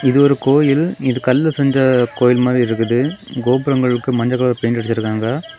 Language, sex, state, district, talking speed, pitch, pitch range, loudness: Tamil, male, Tamil Nadu, Kanyakumari, 150 wpm, 125 Hz, 120-140 Hz, -16 LUFS